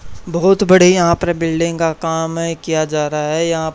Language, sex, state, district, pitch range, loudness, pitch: Hindi, male, Haryana, Charkhi Dadri, 160-170 Hz, -15 LUFS, 165 Hz